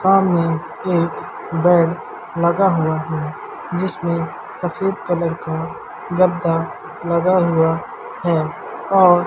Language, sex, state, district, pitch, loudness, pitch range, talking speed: Hindi, male, Madhya Pradesh, Umaria, 170 Hz, -19 LUFS, 165-180 Hz, 105 wpm